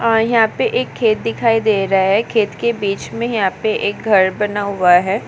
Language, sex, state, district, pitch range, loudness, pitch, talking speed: Hindi, female, Maharashtra, Solapur, 200-230 Hz, -16 LUFS, 215 Hz, 215 wpm